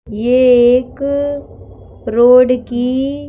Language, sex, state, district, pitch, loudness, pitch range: Hindi, female, Madhya Pradesh, Bhopal, 250 Hz, -12 LUFS, 245-280 Hz